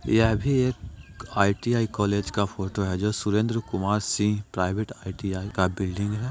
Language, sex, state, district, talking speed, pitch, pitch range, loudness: Hindi, male, Bihar, Jahanabad, 150 wpm, 105 Hz, 95-110 Hz, -26 LUFS